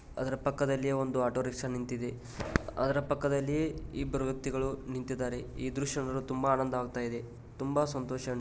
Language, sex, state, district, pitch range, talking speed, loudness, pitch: Kannada, male, Karnataka, Dharwad, 125-140 Hz, 145 wpm, -34 LUFS, 130 Hz